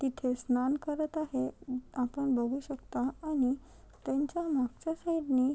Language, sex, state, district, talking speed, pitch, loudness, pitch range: Marathi, female, Maharashtra, Chandrapur, 130 wpm, 270 Hz, -33 LUFS, 255-305 Hz